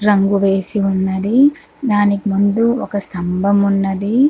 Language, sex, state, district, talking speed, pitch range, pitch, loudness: Telugu, female, Andhra Pradesh, Krishna, 110 wpm, 195-215 Hz, 200 Hz, -16 LUFS